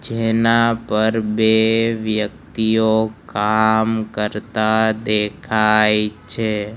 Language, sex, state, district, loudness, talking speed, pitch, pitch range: Gujarati, male, Gujarat, Gandhinagar, -18 LUFS, 70 wpm, 110 Hz, 105-110 Hz